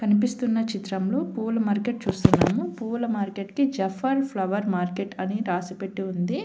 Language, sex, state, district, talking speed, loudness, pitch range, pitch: Telugu, female, Telangana, Hyderabad, 140 wpm, -25 LUFS, 195-230 Hz, 205 Hz